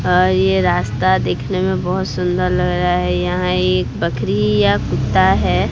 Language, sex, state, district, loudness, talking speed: Hindi, female, Odisha, Sambalpur, -16 LUFS, 170 wpm